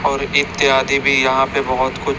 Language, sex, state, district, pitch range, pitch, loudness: Hindi, male, Chhattisgarh, Raipur, 130-140 Hz, 140 Hz, -15 LUFS